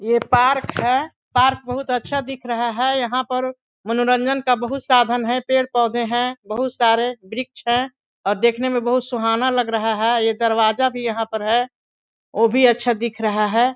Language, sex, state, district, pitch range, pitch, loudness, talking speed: Hindi, female, Chhattisgarh, Balrampur, 230-255 Hz, 245 Hz, -19 LUFS, 185 wpm